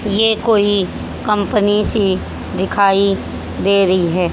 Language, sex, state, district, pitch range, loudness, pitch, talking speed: Hindi, female, Haryana, Jhajjar, 195-210 Hz, -16 LUFS, 205 Hz, 110 wpm